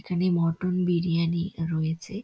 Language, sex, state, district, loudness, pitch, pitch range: Bengali, female, West Bengal, Dakshin Dinajpur, -26 LUFS, 170 Hz, 165-180 Hz